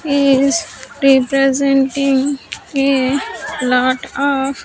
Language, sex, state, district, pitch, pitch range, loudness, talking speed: English, female, Andhra Pradesh, Sri Satya Sai, 275 Hz, 270-280 Hz, -15 LUFS, 65 wpm